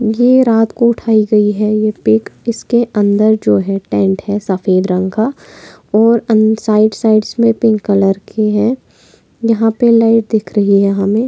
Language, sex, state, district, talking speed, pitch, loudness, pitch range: Hindi, female, Maharashtra, Pune, 165 wpm, 215 Hz, -12 LUFS, 205-230 Hz